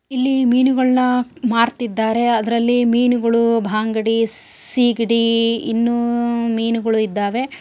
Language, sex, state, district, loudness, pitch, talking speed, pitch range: Kannada, female, Karnataka, Shimoga, -17 LUFS, 235 Hz, 85 wpm, 230-245 Hz